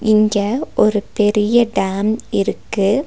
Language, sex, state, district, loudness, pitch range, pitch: Tamil, female, Tamil Nadu, Nilgiris, -17 LUFS, 205-225 Hz, 210 Hz